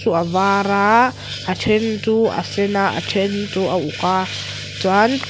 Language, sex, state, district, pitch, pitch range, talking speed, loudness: Mizo, female, Mizoram, Aizawl, 200 Hz, 185-215 Hz, 205 wpm, -18 LUFS